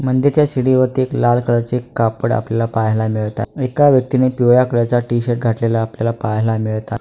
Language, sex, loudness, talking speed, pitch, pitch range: Marathi, male, -16 LUFS, 165 wpm, 120 Hz, 115-130 Hz